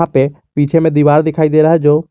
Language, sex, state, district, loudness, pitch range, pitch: Hindi, male, Jharkhand, Garhwa, -12 LUFS, 145-160 Hz, 155 Hz